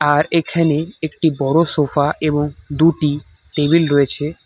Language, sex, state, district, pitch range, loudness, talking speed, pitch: Bengali, male, West Bengal, Cooch Behar, 145-160 Hz, -17 LUFS, 120 wpm, 150 Hz